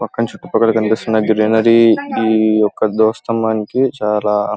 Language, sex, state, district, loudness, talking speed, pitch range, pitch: Telugu, male, Andhra Pradesh, Guntur, -15 LUFS, 120 wpm, 110-115 Hz, 110 Hz